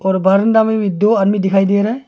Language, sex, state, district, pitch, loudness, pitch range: Hindi, male, Arunachal Pradesh, Longding, 200 Hz, -14 LUFS, 195-220 Hz